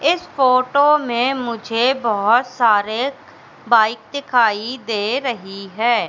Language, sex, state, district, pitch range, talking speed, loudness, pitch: Hindi, female, Madhya Pradesh, Katni, 220-265 Hz, 110 wpm, -17 LUFS, 240 Hz